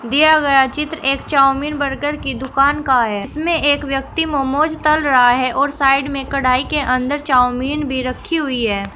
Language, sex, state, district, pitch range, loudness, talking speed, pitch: Hindi, female, Uttar Pradesh, Shamli, 255-295 Hz, -16 LUFS, 190 wpm, 275 Hz